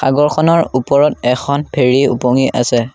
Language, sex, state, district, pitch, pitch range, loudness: Assamese, male, Assam, Sonitpur, 135 Hz, 125-145 Hz, -13 LUFS